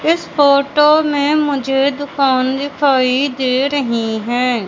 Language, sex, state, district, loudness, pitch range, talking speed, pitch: Hindi, male, Madhya Pradesh, Katni, -15 LUFS, 255-285 Hz, 115 wpm, 275 Hz